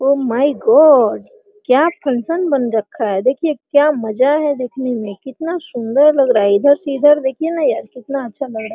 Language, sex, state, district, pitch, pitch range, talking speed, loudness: Hindi, female, Bihar, Araria, 275 Hz, 245-300 Hz, 210 wpm, -15 LUFS